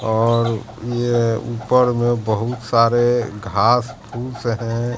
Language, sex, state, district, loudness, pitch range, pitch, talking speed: Hindi, male, Bihar, Katihar, -19 LUFS, 115-120 Hz, 120 Hz, 110 wpm